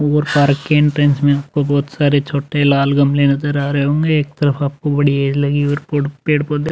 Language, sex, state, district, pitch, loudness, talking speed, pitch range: Hindi, male, Uttar Pradesh, Muzaffarnagar, 145 Hz, -15 LUFS, 225 wpm, 140-150 Hz